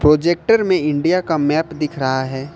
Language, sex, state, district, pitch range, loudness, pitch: Hindi, male, Jharkhand, Ranchi, 145-175 Hz, -17 LUFS, 155 Hz